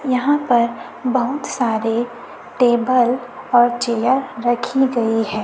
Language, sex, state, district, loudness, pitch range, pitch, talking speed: Hindi, female, Chhattisgarh, Raipur, -18 LUFS, 235-260 Hz, 245 Hz, 110 wpm